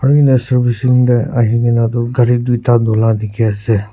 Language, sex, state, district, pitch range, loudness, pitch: Nagamese, male, Nagaland, Kohima, 115-125 Hz, -13 LUFS, 120 Hz